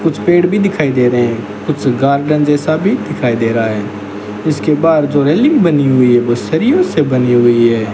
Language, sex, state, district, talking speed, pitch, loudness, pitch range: Hindi, male, Rajasthan, Bikaner, 210 wpm, 140 Hz, -12 LUFS, 120-155 Hz